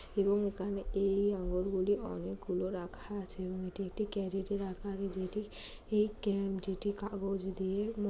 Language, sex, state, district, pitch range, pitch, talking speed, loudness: Bengali, female, West Bengal, Malda, 190-205 Hz, 195 Hz, 135 wpm, -36 LUFS